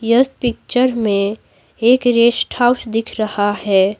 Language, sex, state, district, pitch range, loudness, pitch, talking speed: Hindi, female, Bihar, Patna, 210-245 Hz, -16 LUFS, 230 Hz, 135 wpm